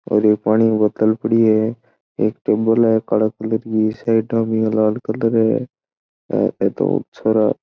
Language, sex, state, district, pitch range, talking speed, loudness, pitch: Marwari, male, Rajasthan, Churu, 110-115 Hz, 165 wpm, -18 LUFS, 110 Hz